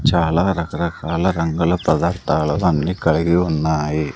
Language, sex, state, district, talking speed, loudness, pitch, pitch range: Telugu, male, Andhra Pradesh, Sri Satya Sai, 100 wpm, -18 LUFS, 85 Hz, 80-85 Hz